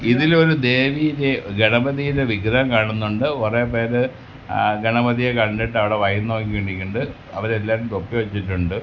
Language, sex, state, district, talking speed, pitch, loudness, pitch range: Malayalam, male, Kerala, Kasaragod, 115 wpm, 115 Hz, -20 LUFS, 105-130 Hz